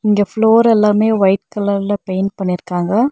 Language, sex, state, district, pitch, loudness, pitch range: Tamil, female, Tamil Nadu, Nilgiris, 205 Hz, -15 LUFS, 195-220 Hz